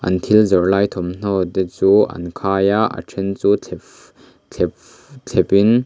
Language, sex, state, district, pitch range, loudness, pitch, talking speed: Mizo, male, Mizoram, Aizawl, 90-105 Hz, -17 LUFS, 100 Hz, 165 wpm